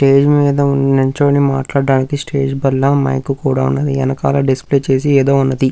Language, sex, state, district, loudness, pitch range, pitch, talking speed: Telugu, male, Andhra Pradesh, Krishna, -14 LUFS, 135-140 Hz, 135 Hz, 145 wpm